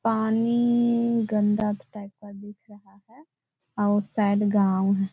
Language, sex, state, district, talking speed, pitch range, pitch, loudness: Hindi, female, Bihar, Jahanabad, 140 wpm, 205-225 Hz, 210 Hz, -23 LUFS